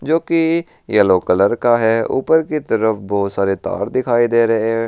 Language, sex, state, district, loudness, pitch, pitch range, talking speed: Marwari, male, Rajasthan, Churu, -16 LUFS, 120 Hz, 110-155 Hz, 195 wpm